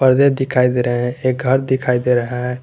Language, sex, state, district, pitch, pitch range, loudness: Hindi, male, Jharkhand, Garhwa, 125 Hz, 125-130 Hz, -17 LUFS